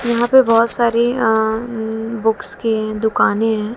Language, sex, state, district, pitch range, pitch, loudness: Hindi, female, Haryana, Jhajjar, 220-235 Hz, 225 Hz, -16 LUFS